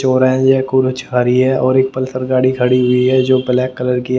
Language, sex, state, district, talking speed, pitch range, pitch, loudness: Hindi, male, Haryana, Jhajjar, 230 wpm, 125-130 Hz, 130 Hz, -14 LUFS